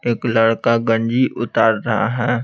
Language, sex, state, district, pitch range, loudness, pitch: Hindi, male, Bihar, Patna, 115-120 Hz, -17 LUFS, 115 Hz